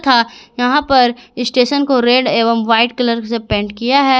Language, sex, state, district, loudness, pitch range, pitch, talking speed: Hindi, female, Jharkhand, Garhwa, -14 LUFS, 235-260 Hz, 245 Hz, 185 wpm